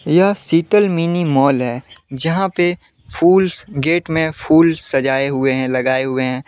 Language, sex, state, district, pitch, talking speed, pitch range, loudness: Hindi, male, Jharkhand, Deoghar, 160 Hz, 165 wpm, 135-175 Hz, -16 LUFS